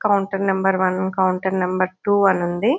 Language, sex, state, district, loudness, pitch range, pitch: Telugu, female, Telangana, Nalgonda, -20 LUFS, 185-195 Hz, 190 Hz